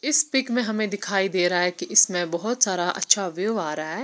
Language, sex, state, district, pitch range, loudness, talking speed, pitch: Hindi, female, Bihar, Patna, 180-230 Hz, -22 LUFS, 250 wpm, 195 Hz